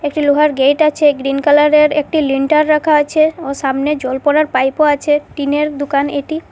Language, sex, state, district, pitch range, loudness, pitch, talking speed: Bengali, female, Assam, Hailakandi, 280-300 Hz, -13 LUFS, 295 Hz, 175 wpm